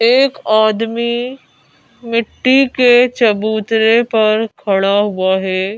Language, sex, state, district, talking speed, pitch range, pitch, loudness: Hindi, female, Madhya Pradesh, Bhopal, 95 wpm, 215-245 Hz, 225 Hz, -13 LUFS